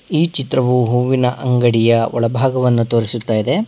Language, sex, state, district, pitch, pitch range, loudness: Kannada, male, Karnataka, Bangalore, 125 Hz, 115-130 Hz, -15 LUFS